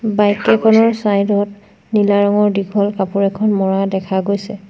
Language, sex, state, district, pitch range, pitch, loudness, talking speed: Assamese, female, Assam, Sonitpur, 195-210 Hz, 205 Hz, -15 LUFS, 155 wpm